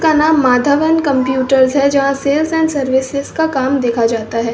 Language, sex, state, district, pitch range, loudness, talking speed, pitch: Hindi, female, Rajasthan, Bikaner, 260-300 Hz, -14 LUFS, 185 wpm, 275 Hz